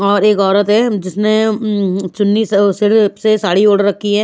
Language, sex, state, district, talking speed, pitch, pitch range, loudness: Hindi, female, Bihar, Patna, 170 wpm, 205 Hz, 200-215 Hz, -13 LUFS